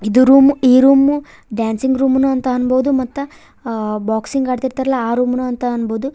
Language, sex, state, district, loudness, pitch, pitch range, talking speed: Kannada, female, Karnataka, Koppal, -15 LUFS, 255 Hz, 235-270 Hz, 145 wpm